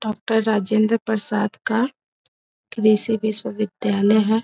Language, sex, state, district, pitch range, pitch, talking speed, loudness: Hindi, female, Bihar, Araria, 210-225 Hz, 215 Hz, 110 wpm, -19 LUFS